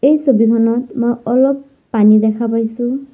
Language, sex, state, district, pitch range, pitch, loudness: Assamese, female, Assam, Sonitpur, 230-265 Hz, 240 Hz, -14 LUFS